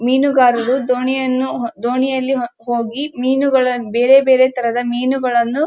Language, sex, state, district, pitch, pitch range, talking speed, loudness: Kannada, female, Karnataka, Dharwad, 255 Hz, 240-265 Hz, 75 wpm, -16 LUFS